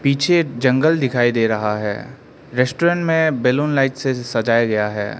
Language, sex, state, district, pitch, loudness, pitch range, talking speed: Hindi, male, Arunachal Pradesh, Lower Dibang Valley, 130 Hz, -18 LUFS, 115-150 Hz, 160 wpm